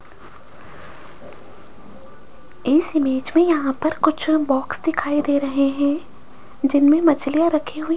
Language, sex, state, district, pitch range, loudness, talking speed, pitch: Hindi, female, Rajasthan, Jaipur, 280-315 Hz, -19 LUFS, 120 wpm, 295 Hz